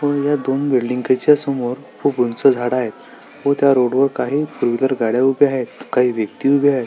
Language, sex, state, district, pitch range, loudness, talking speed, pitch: Marathi, male, Maharashtra, Solapur, 125-140 Hz, -17 LUFS, 185 wpm, 130 Hz